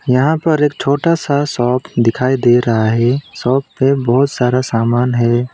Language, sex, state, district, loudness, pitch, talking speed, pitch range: Hindi, male, West Bengal, Alipurduar, -14 LUFS, 125 Hz, 175 wpm, 120-140 Hz